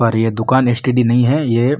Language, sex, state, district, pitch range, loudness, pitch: Marwari, male, Rajasthan, Nagaur, 115-125 Hz, -15 LUFS, 120 Hz